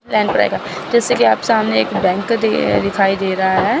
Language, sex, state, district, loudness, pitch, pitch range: Hindi, female, Chandigarh, Chandigarh, -15 LUFS, 195 Hz, 190-225 Hz